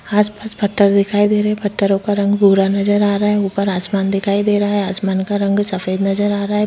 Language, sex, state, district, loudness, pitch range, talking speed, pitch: Hindi, female, Chhattisgarh, Sukma, -16 LUFS, 195-205 Hz, 260 wpm, 200 Hz